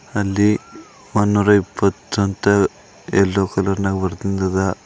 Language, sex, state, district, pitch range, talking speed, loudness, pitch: Kannada, male, Karnataka, Bidar, 95-100 Hz, 100 wpm, -18 LUFS, 100 Hz